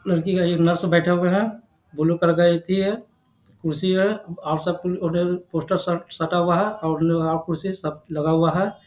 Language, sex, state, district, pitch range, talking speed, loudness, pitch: Hindi, male, Bihar, Jahanabad, 165-185 Hz, 185 wpm, -22 LUFS, 175 Hz